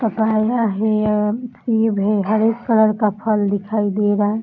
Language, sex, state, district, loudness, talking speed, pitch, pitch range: Hindi, female, Uttar Pradesh, Varanasi, -18 LUFS, 165 wpm, 215 Hz, 210-225 Hz